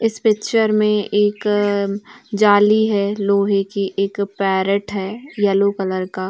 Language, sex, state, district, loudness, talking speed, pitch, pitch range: Hindi, female, Chhattisgarh, Bilaspur, -18 LUFS, 135 wpm, 205 Hz, 200-210 Hz